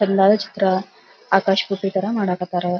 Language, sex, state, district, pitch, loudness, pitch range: Kannada, female, Karnataka, Belgaum, 195 Hz, -20 LUFS, 185-195 Hz